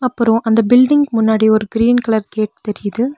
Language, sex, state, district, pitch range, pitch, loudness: Tamil, female, Tamil Nadu, Nilgiris, 220-245 Hz, 225 Hz, -14 LUFS